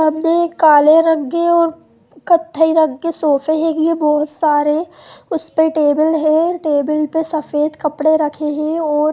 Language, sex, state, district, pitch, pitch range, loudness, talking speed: Hindi, female, Bihar, Sitamarhi, 315 Hz, 300-325 Hz, -15 LUFS, 160 wpm